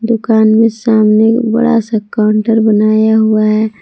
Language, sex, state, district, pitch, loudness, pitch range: Hindi, female, Jharkhand, Palamu, 220 Hz, -10 LUFS, 215-225 Hz